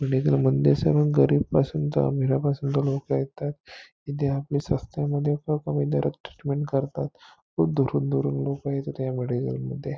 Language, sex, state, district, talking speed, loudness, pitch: Marathi, male, Maharashtra, Nagpur, 140 wpm, -25 LUFS, 130 Hz